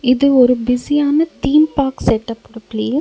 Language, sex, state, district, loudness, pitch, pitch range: Tamil, female, Tamil Nadu, Nilgiris, -15 LUFS, 260 Hz, 235-290 Hz